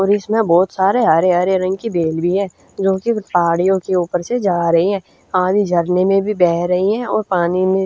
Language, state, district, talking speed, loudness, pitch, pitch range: Haryanvi, Haryana, Rohtak, 235 wpm, -16 LUFS, 185 Hz, 175-195 Hz